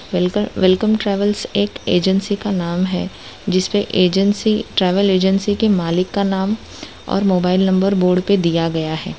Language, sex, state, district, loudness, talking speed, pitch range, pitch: Hindi, female, Gujarat, Valsad, -17 LUFS, 155 wpm, 180-205 Hz, 190 Hz